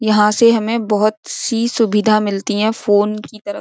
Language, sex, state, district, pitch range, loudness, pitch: Hindi, female, Uttar Pradesh, Jyotiba Phule Nagar, 210-225 Hz, -15 LUFS, 215 Hz